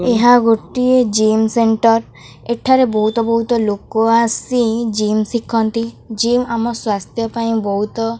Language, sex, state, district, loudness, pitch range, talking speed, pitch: Odia, female, Odisha, Khordha, -16 LUFS, 220-235 Hz, 115 wpm, 230 Hz